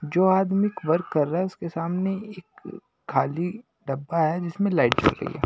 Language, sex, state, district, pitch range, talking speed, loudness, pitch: Hindi, male, Maharashtra, Washim, 165-190 Hz, 175 wpm, -24 LUFS, 180 Hz